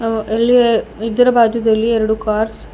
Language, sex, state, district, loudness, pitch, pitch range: Kannada, female, Karnataka, Bidar, -15 LUFS, 225 Hz, 220-230 Hz